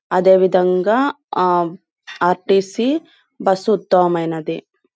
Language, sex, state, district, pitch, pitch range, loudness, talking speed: Telugu, female, Andhra Pradesh, Anantapur, 190 Hz, 175-230 Hz, -17 LUFS, 70 wpm